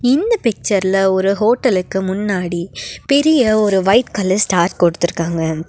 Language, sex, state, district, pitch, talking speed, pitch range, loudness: Tamil, female, Tamil Nadu, Nilgiris, 195 Hz, 115 wpm, 175-230 Hz, -15 LUFS